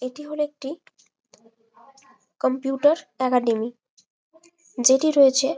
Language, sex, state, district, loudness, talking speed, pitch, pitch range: Bengali, female, West Bengal, Malda, -21 LUFS, 85 wpm, 270 Hz, 250-295 Hz